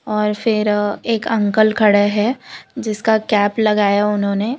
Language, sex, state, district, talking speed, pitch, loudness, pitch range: Hindi, female, Gujarat, Valsad, 170 wpm, 210 Hz, -16 LUFS, 205-220 Hz